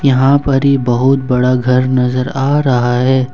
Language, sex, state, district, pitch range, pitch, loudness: Hindi, male, Jharkhand, Ranchi, 125-135 Hz, 130 Hz, -12 LUFS